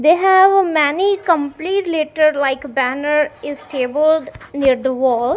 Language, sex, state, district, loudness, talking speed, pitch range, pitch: English, female, Punjab, Kapurthala, -16 LUFS, 155 wpm, 275-335 Hz, 300 Hz